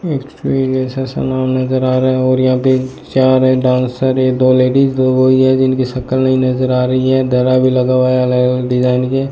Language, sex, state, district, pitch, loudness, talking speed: Hindi, male, Rajasthan, Bikaner, 130 Hz, -13 LUFS, 220 wpm